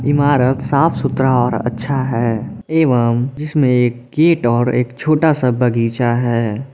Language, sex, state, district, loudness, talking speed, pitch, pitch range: Hindi, male, Jharkhand, Palamu, -16 LUFS, 140 wpm, 125 Hz, 120-145 Hz